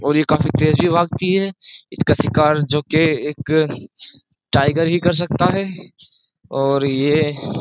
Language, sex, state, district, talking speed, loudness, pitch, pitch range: Hindi, male, Uttar Pradesh, Jyotiba Phule Nagar, 155 wpm, -17 LUFS, 155 Hz, 145-175 Hz